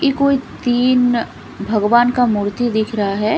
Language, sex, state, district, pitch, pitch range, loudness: Hindi, female, Punjab, Fazilka, 240 Hz, 215-250 Hz, -16 LUFS